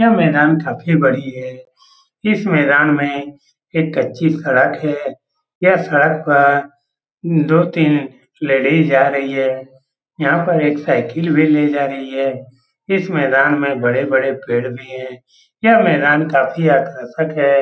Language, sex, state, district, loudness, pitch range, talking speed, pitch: Hindi, male, Bihar, Lakhisarai, -15 LUFS, 135-160 Hz, 165 wpm, 145 Hz